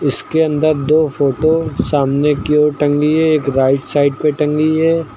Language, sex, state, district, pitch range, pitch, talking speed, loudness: Hindi, male, Uttar Pradesh, Lucknow, 140-155 Hz, 150 Hz, 175 wpm, -14 LUFS